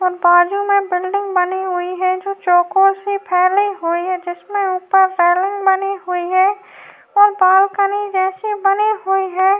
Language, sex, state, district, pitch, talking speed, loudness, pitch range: Hindi, female, Uttar Pradesh, Jyotiba Phule Nagar, 380 Hz, 150 wpm, -16 LUFS, 365-400 Hz